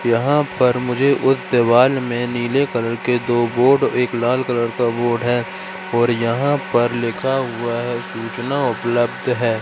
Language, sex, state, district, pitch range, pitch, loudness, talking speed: Hindi, male, Madhya Pradesh, Katni, 120-130 Hz, 120 Hz, -18 LUFS, 160 wpm